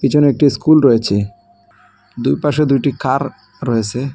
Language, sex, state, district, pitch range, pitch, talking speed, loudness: Bengali, male, Assam, Hailakandi, 115-145 Hz, 135 Hz, 130 wpm, -15 LUFS